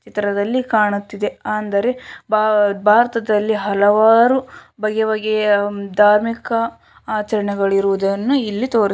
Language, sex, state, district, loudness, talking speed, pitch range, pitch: Kannada, female, Karnataka, Shimoga, -17 LUFS, 80 wpm, 205-225 Hz, 215 Hz